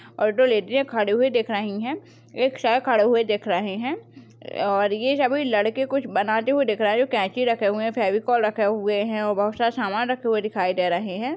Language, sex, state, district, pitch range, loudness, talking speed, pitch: Hindi, female, Maharashtra, Nagpur, 205-255 Hz, -22 LUFS, 225 wpm, 225 Hz